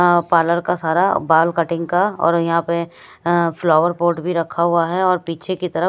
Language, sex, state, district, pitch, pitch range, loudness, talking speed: Hindi, female, Punjab, Kapurthala, 170 Hz, 165-175 Hz, -18 LUFS, 215 wpm